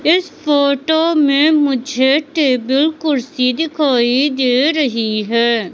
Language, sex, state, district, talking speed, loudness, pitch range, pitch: Hindi, male, Madhya Pradesh, Katni, 105 wpm, -15 LUFS, 250-305 Hz, 280 Hz